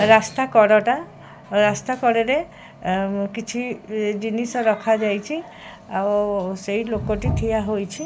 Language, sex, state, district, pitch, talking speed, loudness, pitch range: Odia, female, Odisha, Khordha, 215 Hz, 110 wpm, -21 LUFS, 205-230 Hz